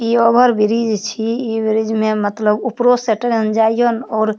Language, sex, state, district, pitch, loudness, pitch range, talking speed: Maithili, female, Bihar, Supaul, 225 Hz, -16 LUFS, 220-235 Hz, 205 wpm